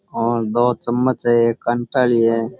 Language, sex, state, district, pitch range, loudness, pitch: Rajasthani, male, Rajasthan, Churu, 115-120 Hz, -18 LUFS, 120 Hz